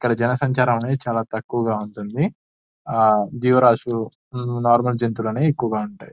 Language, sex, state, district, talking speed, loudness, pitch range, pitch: Telugu, male, Telangana, Nalgonda, 135 wpm, -20 LUFS, 110-125 Hz, 120 Hz